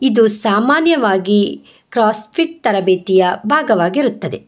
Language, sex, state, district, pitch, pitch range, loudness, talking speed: Kannada, female, Karnataka, Bangalore, 220 Hz, 200-270 Hz, -14 LUFS, 80 wpm